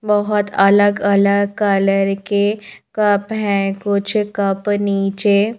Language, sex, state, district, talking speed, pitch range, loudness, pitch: Hindi, female, Madhya Pradesh, Bhopal, 95 wpm, 200-205 Hz, -16 LUFS, 200 Hz